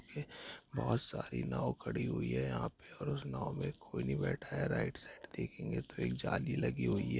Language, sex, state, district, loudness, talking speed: Hindi, male, Jharkhand, Jamtara, -39 LUFS, 210 wpm